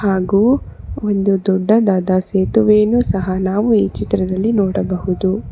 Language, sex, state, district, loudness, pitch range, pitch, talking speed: Kannada, female, Karnataka, Bangalore, -16 LUFS, 190-210 Hz, 195 Hz, 110 wpm